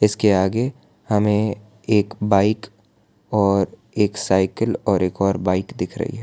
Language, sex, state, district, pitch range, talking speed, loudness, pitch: Hindi, male, Gujarat, Valsad, 100-105 Hz, 145 wpm, -20 LUFS, 100 Hz